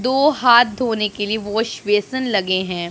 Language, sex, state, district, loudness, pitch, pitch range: Hindi, female, Punjab, Pathankot, -18 LUFS, 220 Hz, 205-245 Hz